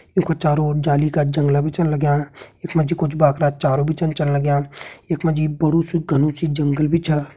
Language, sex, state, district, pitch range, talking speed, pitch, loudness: Garhwali, male, Uttarakhand, Tehri Garhwal, 145-160 Hz, 230 wpm, 150 Hz, -19 LUFS